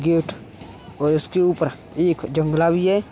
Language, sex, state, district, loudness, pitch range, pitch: Hindi, male, Uttar Pradesh, Hamirpur, -21 LUFS, 150-175 Hz, 160 Hz